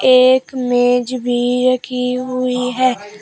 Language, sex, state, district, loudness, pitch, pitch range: Hindi, female, Uttar Pradesh, Shamli, -16 LUFS, 250 Hz, 245-255 Hz